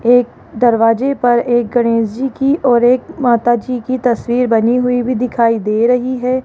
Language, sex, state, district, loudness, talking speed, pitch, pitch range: Hindi, female, Rajasthan, Jaipur, -14 LUFS, 185 wpm, 245 Hz, 235-255 Hz